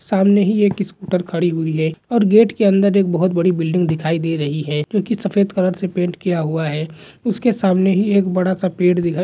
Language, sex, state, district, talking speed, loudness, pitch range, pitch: Hindi, male, Andhra Pradesh, Krishna, 235 wpm, -17 LUFS, 165-200 Hz, 185 Hz